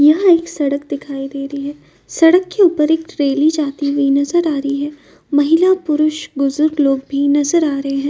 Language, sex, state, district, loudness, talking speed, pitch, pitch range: Hindi, female, Uttar Pradesh, Jyotiba Phule Nagar, -15 LUFS, 200 wpm, 290 Hz, 280-320 Hz